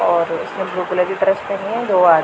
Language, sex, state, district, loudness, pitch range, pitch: Hindi, female, Punjab, Pathankot, -18 LUFS, 180-195 Hz, 185 Hz